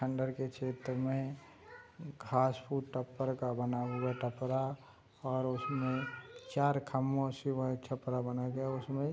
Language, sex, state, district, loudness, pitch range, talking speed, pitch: Hindi, male, Bihar, Gopalganj, -36 LUFS, 125-135 Hz, 160 wpm, 130 Hz